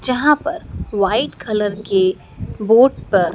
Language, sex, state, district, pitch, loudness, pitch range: Hindi, male, Madhya Pradesh, Dhar, 210 Hz, -17 LUFS, 190-255 Hz